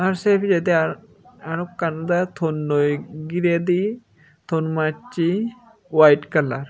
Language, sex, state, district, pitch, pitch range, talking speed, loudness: Chakma, male, Tripura, Unakoti, 170 Hz, 155-185 Hz, 115 wpm, -21 LUFS